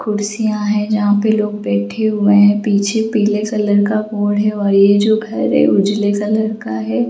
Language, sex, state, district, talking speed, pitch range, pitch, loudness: Hindi, female, Jharkhand, Jamtara, 195 wpm, 205-215 Hz, 210 Hz, -15 LUFS